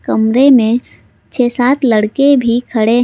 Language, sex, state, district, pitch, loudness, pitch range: Hindi, female, Jharkhand, Palamu, 245 Hz, -12 LUFS, 230-260 Hz